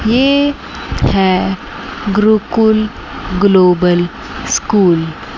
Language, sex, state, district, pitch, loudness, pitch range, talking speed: Hindi, female, Chandigarh, Chandigarh, 200 Hz, -13 LUFS, 180-220 Hz, 65 wpm